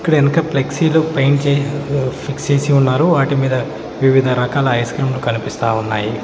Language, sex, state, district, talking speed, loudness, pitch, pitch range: Telugu, male, Telangana, Mahabubabad, 165 wpm, -16 LUFS, 135 Hz, 125-145 Hz